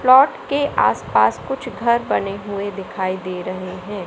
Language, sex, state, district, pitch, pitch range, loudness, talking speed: Hindi, male, Madhya Pradesh, Katni, 200 Hz, 185-250 Hz, -20 LUFS, 160 wpm